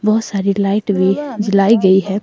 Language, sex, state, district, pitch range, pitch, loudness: Hindi, female, Himachal Pradesh, Shimla, 195-210 Hz, 200 Hz, -14 LUFS